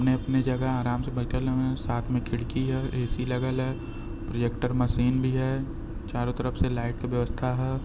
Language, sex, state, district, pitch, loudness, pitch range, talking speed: Hindi, male, Uttar Pradesh, Varanasi, 125 Hz, -28 LUFS, 120-130 Hz, 185 wpm